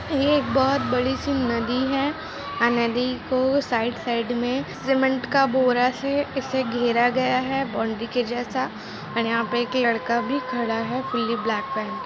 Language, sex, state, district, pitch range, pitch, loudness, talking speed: Hindi, female, Bihar, Gopalganj, 235-265 Hz, 250 Hz, -23 LUFS, 175 wpm